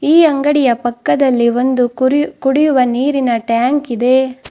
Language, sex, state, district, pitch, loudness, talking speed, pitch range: Kannada, female, Karnataka, Bidar, 260 Hz, -13 LUFS, 120 wpm, 240-285 Hz